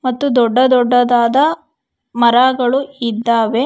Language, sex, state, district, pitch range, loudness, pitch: Kannada, female, Karnataka, Bangalore, 235-265 Hz, -13 LUFS, 245 Hz